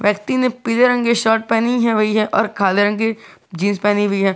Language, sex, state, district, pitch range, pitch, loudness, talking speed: Hindi, male, Jharkhand, Garhwa, 205-230 Hz, 220 Hz, -17 LUFS, 235 wpm